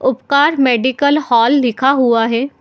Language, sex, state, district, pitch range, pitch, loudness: Hindi, female, Bihar, Madhepura, 240-285 Hz, 260 Hz, -13 LUFS